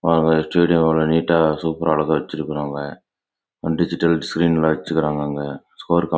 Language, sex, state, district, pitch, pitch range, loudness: Tamil, male, Karnataka, Chamarajanagar, 80 Hz, 75-85 Hz, -19 LUFS